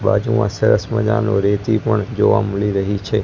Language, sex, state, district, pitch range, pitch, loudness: Gujarati, male, Gujarat, Gandhinagar, 100-110 Hz, 105 Hz, -17 LUFS